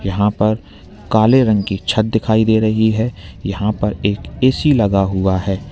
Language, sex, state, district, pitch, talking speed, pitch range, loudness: Hindi, male, Uttar Pradesh, Lalitpur, 105 Hz, 180 wpm, 95-110 Hz, -16 LUFS